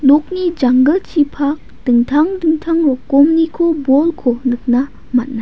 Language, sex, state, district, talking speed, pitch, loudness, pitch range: Garo, female, Meghalaya, West Garo Hills, 90 wpm, 285 Hz, -14 LUFS, 255-325 Hz